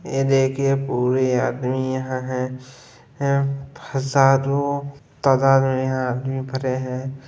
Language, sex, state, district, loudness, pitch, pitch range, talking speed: Hindi, male, Chhattisgarh, Sarguja, -21 LUFS, 135 Hz, 130-135 Hz, 125 wpm